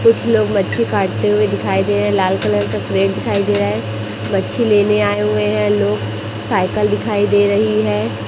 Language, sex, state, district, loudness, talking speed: Hindi, female, Chhattisgarh, Raipur, -16 LUFS, 205 wpm